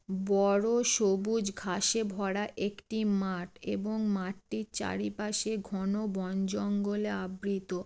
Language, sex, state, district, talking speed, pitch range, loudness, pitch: Bengali, female, West Bengal, Jalpaiguri, 105 wpm, 190-210 Hz, -32 LUFS, 200 Hz